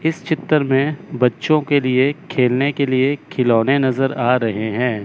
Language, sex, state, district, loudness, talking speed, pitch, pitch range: Hindi, male, Chandigarh, Chandigarh, -18 LUFS, 165 wpm, 135 Hz, 125-150 Hz